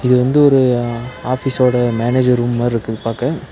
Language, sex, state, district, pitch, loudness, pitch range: Tamil, male, Tamil Nadu, Nilgiris, 125 Hz, -15 LUFS, 120-130 Hz